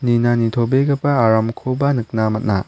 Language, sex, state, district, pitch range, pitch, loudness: Garo, male, Meghalaya, West Garo Hills, 110-130 Hz, 120 Hz, -17 LUFS